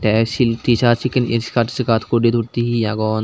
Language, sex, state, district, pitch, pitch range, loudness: Chakma, male, Tripura, Dhalai, 115 Hz, 115-120 Hz, -18 LUFS